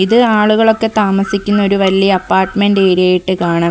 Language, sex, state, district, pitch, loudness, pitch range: Malayalam, female, Kerala, Kollam, 195 Hz, -12 LUFS, 190-210 Hz